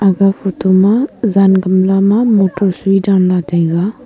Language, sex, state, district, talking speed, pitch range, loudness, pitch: Wancho, female, Arunachal Pradesh, Longding, 150 wpm, 185-200 Hz, -12 LUFS, 195 Hz